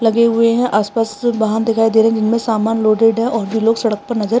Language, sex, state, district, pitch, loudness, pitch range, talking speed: Hindi, male, Uttarakhand, Tehri Garhwal, 225 Hz, -15 LUFS, 220-230 Hz, 245 wpm